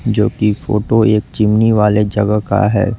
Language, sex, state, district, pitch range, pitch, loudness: Hindi, male, Bihar, West Champaran, 105-110 Hz, 105 Hz, -14 LUFS